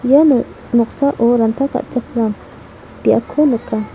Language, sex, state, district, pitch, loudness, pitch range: Garo, female, Meghalaya, South Garo Hills, 245 Hz, -16 LUFS, 230-275 Hz